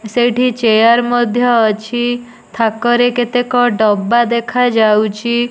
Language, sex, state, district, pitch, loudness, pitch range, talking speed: Odia, female, Odisha, Nuapada, 240 Hz, -13 LUFS, 225-245 Hz, 110 wpm